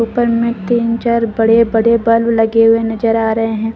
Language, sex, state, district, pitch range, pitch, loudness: Hindi, female, Jharkhand, Deoghar, 225-230 Hz, 230 Hz, -13 LUFS